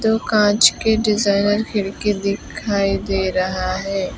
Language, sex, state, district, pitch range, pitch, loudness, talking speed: Hindi, female, West Bengal, Alipurduar, 195-210 Hz, 200 Hz, -18 LUFS, 115 wpm